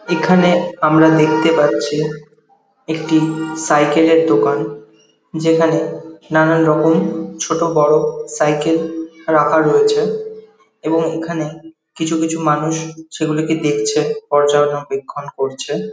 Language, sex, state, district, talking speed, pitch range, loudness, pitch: Bengali, male, West Bengal, Dakshin Dinajpur, 95 wpm, 150-165 Hz, -16 LUFS, 160 Hz